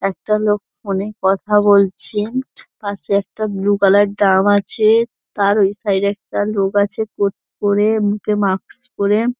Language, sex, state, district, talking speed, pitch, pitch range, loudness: Bengali, female, West Bengal, Dakshin Dinajpur, 155 wpm, 205 Hz, 200-210 Hz, -17 LUFS